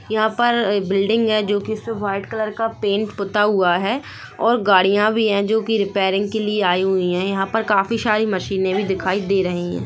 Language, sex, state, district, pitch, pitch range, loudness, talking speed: Hindi, female, Jharkhand, Sahebganj, 205 Hz, 195-220 Hz, -19 LUFS, 220 wpm